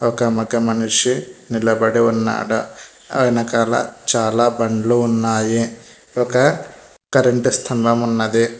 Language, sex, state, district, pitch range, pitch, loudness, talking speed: Telugu, male, Telangana, Hyderabad, 115-120 Hz, 115 Hz, -17 LUFS, 90 wpm